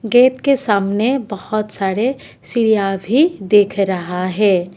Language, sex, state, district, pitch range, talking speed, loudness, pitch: Hindi, female, Assam, Kamrup Metropolitan, 195-240 Hz, 125 wpm, -16 LUFS, 210 Hz